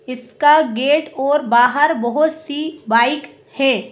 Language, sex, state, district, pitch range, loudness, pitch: Hindi, female, Madhya Pradesh, Bhopal, 245-300 Hz, -16 LUFS, 280 Hz